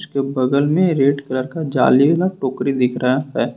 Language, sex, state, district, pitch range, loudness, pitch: Hindi, male, Jharkhand, Ranchi, 130-150 Hz, -17 LUFS, 135 Hz